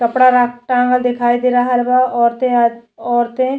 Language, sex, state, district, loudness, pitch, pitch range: Bhojpuri, female, Uttar Pradesh, Deoria, -14 LUFS, 245 Hz, 240-250 Hz